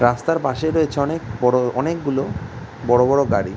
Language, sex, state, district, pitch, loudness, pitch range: Bengali, male, West Bengal, Kolkata, 130 Hz, -19 LUFS, 120-150 Hz